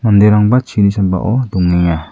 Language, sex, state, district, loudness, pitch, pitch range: Garo, male, Meghalaya, South Garo Hills, -12 LUFS, 100 Hz, 90-110 Hz